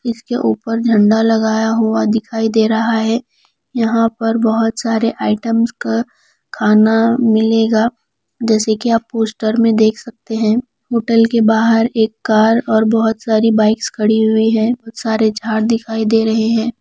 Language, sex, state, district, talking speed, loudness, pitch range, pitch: Hindi, female, Odisha, Nuapada, 155 wpm, -15 LUFS, 220-230 Hz, 225 Hz